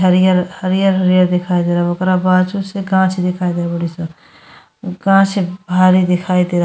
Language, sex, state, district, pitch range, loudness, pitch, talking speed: Bhojpuri, female, Uttar Pradesh, Gorakhpur, 180-185 Hz, -15 LUFS, 185 Hz, 200 wpm